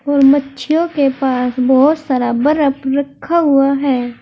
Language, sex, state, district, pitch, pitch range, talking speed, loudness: Hindi, female, Uttar Pradesh, Saharanpur, 275 Hz, 260-290 Hz, 140 wpm, -14 LUFS